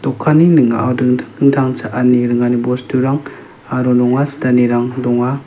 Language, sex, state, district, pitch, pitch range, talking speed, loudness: Garo, male, Meghalaya, West Garo Hills, 125 Hz, 120-135 Hz, 120 wpm, -14 LUFS